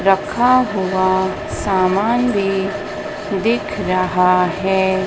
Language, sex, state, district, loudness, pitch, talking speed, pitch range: Hindi, female, Madhya Pradesh, Dhar, -17 LUFS, 195 Hz, 85 wpm, 190-210 Hz